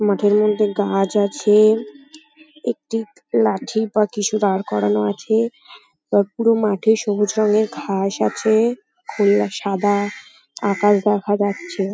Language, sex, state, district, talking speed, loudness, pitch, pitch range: Bengali, female, West Bengal, Paschim Medinipur, 115 wpm, -19 LUFS, 210 Hz, 200-220 Hz